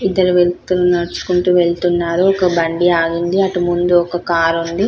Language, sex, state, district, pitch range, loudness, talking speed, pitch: Telugu, female, Telangana, Karimnagar, 170-180 Hz, -15 LUFS, 145 wpm, 175 Hz